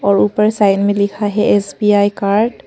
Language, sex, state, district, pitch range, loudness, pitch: Hindi, female, Arunachal Pradesh, Papum Pare, 200-210 Hz, -14 LUFS, 205 Hz